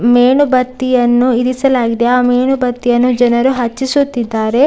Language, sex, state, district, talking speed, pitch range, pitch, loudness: Kannada, female, Karnataka, Dakshina Kannada, 75 wpm, 240-255 Hz, 250 Hz, -12 LUFS